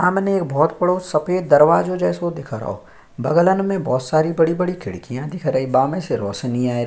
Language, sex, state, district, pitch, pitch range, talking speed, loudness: Hindi, male, Uttarakhand, Tehri Garhwal, 155 Hz, 125-180 Hz, 210 wpm, -19 LUFS